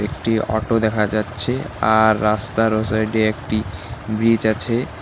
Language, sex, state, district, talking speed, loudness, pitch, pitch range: Bengali, male, West Bengal, Alipurduar, 145 wpm, -19 LUFS, 110 Hz, 110-115 Hz